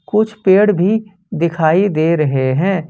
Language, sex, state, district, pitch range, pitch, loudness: Hindi, male, Jharkhand, Ranchi, 160-205 Hz, 185 Hz, -14 LUFS